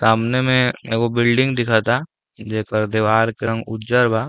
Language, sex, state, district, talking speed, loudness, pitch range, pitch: Bhojpuri, male, Uttar Pradesh, Deoria, 155 wpm, -18 LUFS, 110-125 Hz, 115 Hz